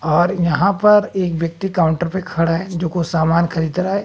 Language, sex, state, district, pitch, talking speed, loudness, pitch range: Hindi, male, Bihar, West Champaran, 175 Hz, 220 wpm, -17 LUFS, 165-190 Hz